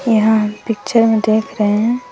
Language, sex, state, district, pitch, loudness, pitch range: Hindi, female, Bihar, West Champaran, 220 Hz, -15 LUFS, 215-235 Hz